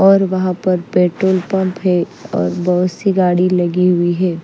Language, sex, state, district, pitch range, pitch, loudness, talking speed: Hindi, female, Chandigarh, Chandigarh, 175-185 Hz, 180 Hz, -15 LUFS, 175 wpm